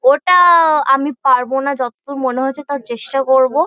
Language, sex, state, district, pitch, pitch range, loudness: Bengali, female, West Bengal, Kolkata, 270 Hz, 260-290 Hz, -14 LUFS